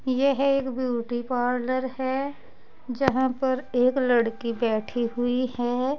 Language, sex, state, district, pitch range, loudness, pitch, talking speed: Hindi, female, Uttar Pradesh, Saharanpur, 245-260 Hz, -25 LUFS, 255 Hz, 120 wpm